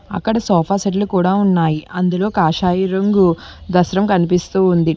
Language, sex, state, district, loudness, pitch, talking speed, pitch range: Telugu, female, Telangana, Hyderabad, -16 LUFS, 185 Hz, 135 wpm, 180-200 Hz